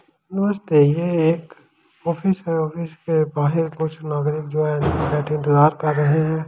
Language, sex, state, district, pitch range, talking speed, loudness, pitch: Hindi, male, Delhi, New Delhi, 150-165 Hz, 155 wpm, -20 LUFS, 155 Hz